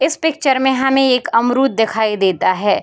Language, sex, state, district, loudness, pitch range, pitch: Hindi, female, Bihar, Darbhanga, -15 LUFS, 220-270 Hz, 260 Hz